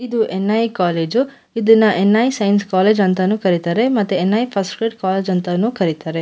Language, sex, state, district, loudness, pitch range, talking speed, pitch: Kannada, female, Karnataka, Mysore, -16 LUFS, 185-225 Hz, 155 wpm, 200 Hz